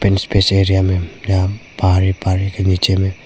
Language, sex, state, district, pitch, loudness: Hindi, male, Arunachal Pradesh, Papum Pare, 95 Hz, -16 LUFS